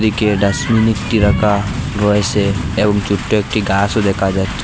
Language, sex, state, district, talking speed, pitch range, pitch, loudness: Bengali, male, Assam, Hailakandi, 140 wpm, 100-110 Hz, 105 Hz, -15 LUFS